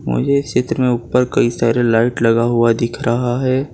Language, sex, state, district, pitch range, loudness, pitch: Hindi, male, Gujarat, Valsad, 115-130 Hz, -16 LUFS, 120 Hz